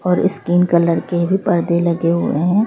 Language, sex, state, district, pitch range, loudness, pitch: Hindi, female, Madhya Pradesh, Bhopal, 170-180 Hz, -16 LUFS, 175 Hz